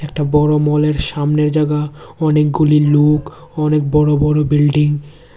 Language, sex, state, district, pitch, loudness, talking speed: Bengali, male, Tripura, West Tripura, 150 Hz, -15 LUFS, 135 wpm